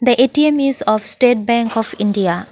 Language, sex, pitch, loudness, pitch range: English, female, 235 Hz, -15 LUFS, 215-255 Hz